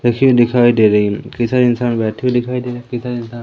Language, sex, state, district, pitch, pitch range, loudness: Hindi, female, Madhya Pradesh, Umaria, 120 Hz, 120-125 Hz, -15 LUFS